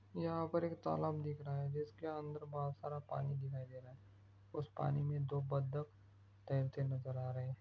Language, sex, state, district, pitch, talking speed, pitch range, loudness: Hindi, male, Maharashtra, Aurangabad, 140 Hz, 195 wpm, 130-150 Hz, -42 LUFS